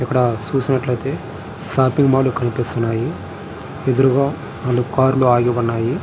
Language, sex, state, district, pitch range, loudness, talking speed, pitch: Telugu, male, Andhra Pradesh, Srikakulam, 120-135 Hz, -18 LUFS, 130 wpm, 130 Hz